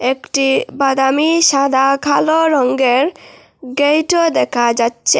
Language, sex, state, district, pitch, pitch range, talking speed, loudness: Bengali, female, Assam, Hailakandi, 275 Hz, 255-300 Hz, 90 wpm, -14 LUFS